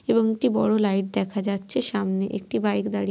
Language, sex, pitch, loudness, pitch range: Bengali, female, 200 Hz, -24 LUFS, 185-215 Hz